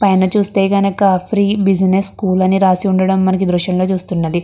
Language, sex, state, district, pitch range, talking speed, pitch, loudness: Telugu, female, Andhra Pradesh, Krishna, 185-195 Hz, 190 wpm, 190 Hz, -14 LUFS